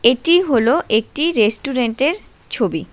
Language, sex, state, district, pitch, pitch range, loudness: Bengali, female, West Bengal, Cooch Behar, 255 Hz, 235-325 Hz, -17 LUFS